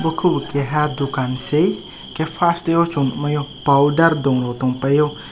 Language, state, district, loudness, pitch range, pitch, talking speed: Kokborok, Tripura, West Tripura, -18 LUFS, 140-165 Hz, 145 Hz, 160 wpm